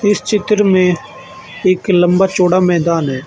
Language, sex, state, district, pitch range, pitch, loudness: Hindi, male, Uttar Pradesh, Saharanpur, 175-205 Hz, 180 Hz, -13 LUFS